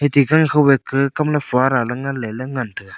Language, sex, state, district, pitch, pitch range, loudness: Wancho, male, Arunachal Pradesh, Longding, 135 Hz, 130-145 Hz, -17 LUFS